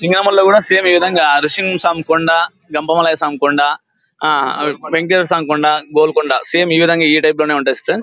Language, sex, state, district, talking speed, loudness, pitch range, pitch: Telugu, male, Andhra Pradesh, Anantapur, 140 wpm, -13 LUFS, 150-175 Hz, 165 Hz